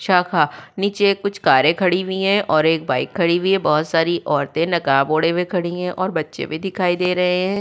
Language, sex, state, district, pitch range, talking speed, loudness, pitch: Hindi, female, Uttar Pradesh, Budaun, 160-190 Hz, 220 wpm, -18 LUFS, 180 Hz